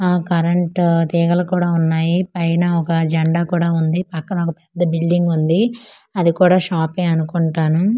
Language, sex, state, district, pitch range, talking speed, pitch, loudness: Telugu, female, Andhra Pradesh, Manyam, 165-180 Hz, 145 wpm, 170 Hz, -17 LUFS